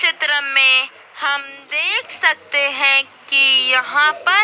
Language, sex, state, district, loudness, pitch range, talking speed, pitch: Hindi, female, Madhya Pradesh, Dhar, -14 LUFS, 275-310 Hz, 120 wpm, 280 Hz